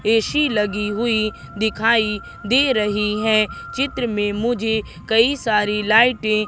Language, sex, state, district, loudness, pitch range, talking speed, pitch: Hindi, female, Madhya Pradesh, Katni, -19 LUFS, 210-235 Hz, 130 wpm, 220 Hz